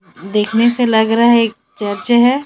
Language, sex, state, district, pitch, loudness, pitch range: Hindi, female, Chhattisgarh, Raipur, 230 Hz, -14 LUFS, 215-240 Hz